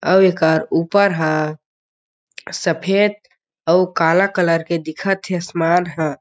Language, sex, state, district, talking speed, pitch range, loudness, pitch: Chhattisgarhi, male, Chhattisgarh, Jashpur, 125 wpm, 160-190 Hz, -17 LUFS, 170 Hz